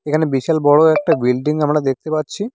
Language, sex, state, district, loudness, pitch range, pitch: Bengali, male, West Bengal, Cooch Behar, -16 LUFS, 145-160 Hz, 150 Hz